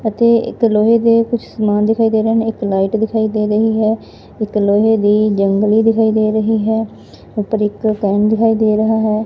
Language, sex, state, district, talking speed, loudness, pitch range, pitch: Punjabi, female, Punjab, Fazilka, 195 wpm, -14 LUFS, 210-225 Hz, 220 Hz